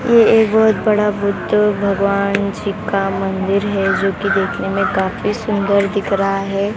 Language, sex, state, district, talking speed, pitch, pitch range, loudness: Hindi, female, Maharashtra, Mumbai Suburban, 170 wpm, 200 Hz, 195-210 Hz, -16 LUFS